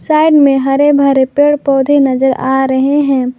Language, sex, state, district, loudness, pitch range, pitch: Hindi, female, Jharkhand, Garhwa, -10 LUFS, 265-290 Hz, 275 Hz